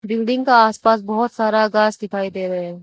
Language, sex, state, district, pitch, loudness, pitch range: Hindi, female, Arunachal Pradesh, Lower Dibang Valley, 215 Hz, -17 LUFS, 200-225 Hz